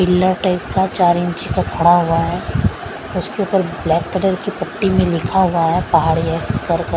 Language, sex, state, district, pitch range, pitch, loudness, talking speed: Hindi, female, Maharashtra, Mumbai Suburban, 170-190 Hz, 180 Hz, -17 LUFS, 200 wpm